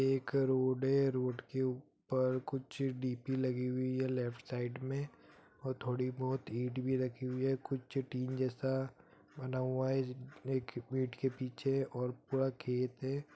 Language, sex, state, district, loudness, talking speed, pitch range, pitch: Hindi, male, Bihar, Gopalganj, -37 LUFS, 160 wpm, 125-135 Hz, 130 Hz